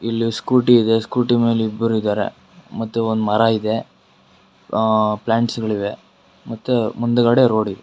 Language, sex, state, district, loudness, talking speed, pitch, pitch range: Kannada, male, Karnataka, Bangalore, -18 LUFS, 130 wpm, 115 Hz, 110-115 Hz